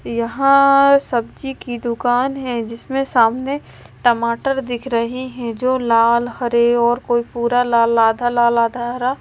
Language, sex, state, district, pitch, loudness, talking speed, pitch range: Hindi, female, Delhi, New Delhi, 240 Hz, -17 LUFS, 145 wpm, 235-260 Hz